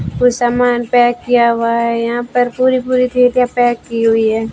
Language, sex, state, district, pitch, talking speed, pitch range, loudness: Hindi, female, Rajasthan, Bikaner, 240 Hz, 200 wpm, 230-245 Hz, -14 LUFS